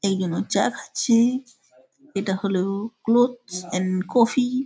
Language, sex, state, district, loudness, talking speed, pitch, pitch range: Bengali, male, West Bengal, Malda, -23 LUFS, 130 wpm, 215 Hz, 185-245 Hz